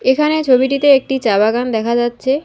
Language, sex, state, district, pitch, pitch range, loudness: Bengali, female, West Bengal, Alipurduar, 260 Hz, 235-275 Hz, -14 LUFS